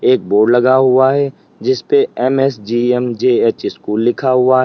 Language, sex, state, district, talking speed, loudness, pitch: Hindi, male, Uttar Pradesh, Lalitpur, 140 wpm, -14 LUFS, 130 Hz